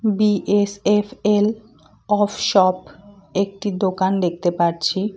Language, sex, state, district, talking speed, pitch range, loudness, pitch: Bengali, female, West Bengal, Cooch Behar, 80 wpm, 190-210 Hz, -19 LUFS, 200 Hz